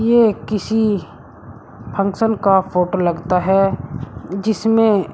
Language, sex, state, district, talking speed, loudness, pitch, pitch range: Hindi, male, Uttar Pradesh, Shamli, 95 wpm, -17 LUFS, 195 Hz, 180-220 Hz